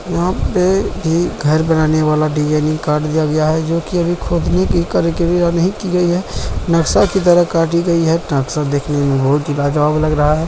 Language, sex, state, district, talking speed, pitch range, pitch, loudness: Hindi, male, Bihar, Saharsa, 215 wpm, 150-175 Hz, 160 Hz, -15 LUFS